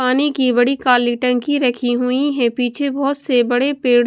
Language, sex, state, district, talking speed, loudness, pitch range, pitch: Hindi, female, Punjab, Kapurthala, 205 wpm, -17 LUFS, 245-275 Hz, 250 Hz